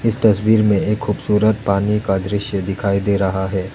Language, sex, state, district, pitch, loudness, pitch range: Hindi, male, Arunachal Pradesh, Lower Dibang Valley, 100 Hz, -17 LUFS, 95-105 Hz